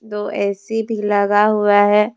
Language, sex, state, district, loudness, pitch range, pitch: Hindi, female, Jharkhand, Deoghar, -16 LUFS, 205-215 Hz, 210 Hz